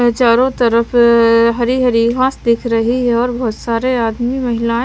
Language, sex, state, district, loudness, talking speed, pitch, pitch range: Hindi, female, Maharashtra, Washim, -14 LUFS, 160 wpm, 235 Hz, 230-245 Hz